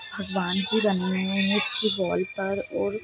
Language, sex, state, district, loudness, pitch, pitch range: Hindi, female, Bihar, Sitamarhi, -24 LUFS, 195 Hz, 190-210 Hz